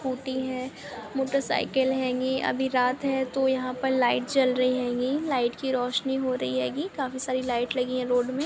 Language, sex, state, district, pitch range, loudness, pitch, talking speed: Hindi, female, Goa, North and South Goa, 250-265 Hz, -27 LUFS, 260 Hz, 190 wpm